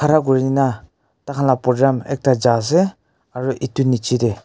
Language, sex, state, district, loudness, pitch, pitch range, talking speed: Nagamese, male, Nagaland, Kohima, -18 LUFS, 130 Hz, 125-140 Hz, 190 wpm